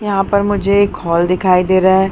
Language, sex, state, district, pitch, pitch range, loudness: Hindi, female, Chhattisgarh, Bilaspur, 190 Hz, 185-200 Hz, -13 LUFS